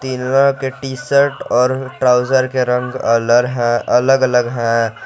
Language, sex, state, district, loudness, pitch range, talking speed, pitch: Hindi, male, Jharkhand, Garhwa, -15 LUFS, 120-130 Hz, 145 wpm, 125 Hz